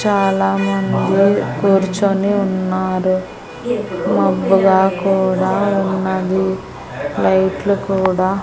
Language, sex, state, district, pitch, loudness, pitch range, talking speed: Telugu, female, Andhra Pradesh, Annamaya, 190 Hz, -16 LUFS, 190-195 Hz, 70 wpm